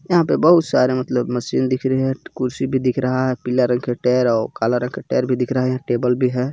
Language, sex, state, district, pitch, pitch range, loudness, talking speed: Hindi, male, Jharkhand, Garhwa, 125 Hz, 125-130 Hz, -19 LUFS, 275 wpm